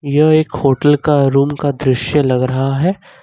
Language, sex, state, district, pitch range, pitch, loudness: Hindi, male, Jharkhand, Ranchi, 135-150 Hz, 140 Hz, -14 LUFS